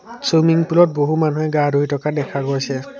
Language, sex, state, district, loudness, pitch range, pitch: Assamese, male, Assam, Sonitpur, -17 LUFS, 145-165 Hz, 150 Hz